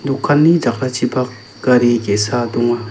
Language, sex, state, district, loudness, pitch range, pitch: Garo, male, Meghalaya, West Garo Hills, -15 LUFS, 120-130 Hz, 125 Hz